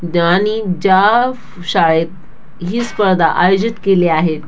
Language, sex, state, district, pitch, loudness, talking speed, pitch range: Marathi, female, Maharashtra, Dhule, 185 Hz, -14 LUFS, 95 wpm, 170-210 Hz